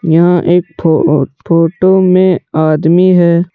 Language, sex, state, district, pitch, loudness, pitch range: Hindi, male, Jharkhand, Deoghar, 170 Hz, -10 LUFS, 160-185 Hz